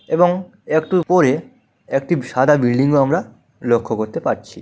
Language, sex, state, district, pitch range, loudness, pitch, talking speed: Bengali, male, West Bengal, Malda, 130-175 Hz, -18 LUFS, 150 Hz, 145 wpm